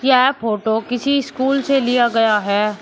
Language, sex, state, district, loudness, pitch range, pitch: Hindi, male, Uttar Pradesh, Shamli, -17 LUFS, 220-270 Hz, 245 Hz